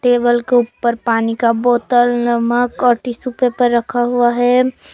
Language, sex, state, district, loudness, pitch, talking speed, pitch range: Hindi, female, Jharkhand, Palamu, -15 LUFS, 245 Hz, 160 wpm, 235-245 Hz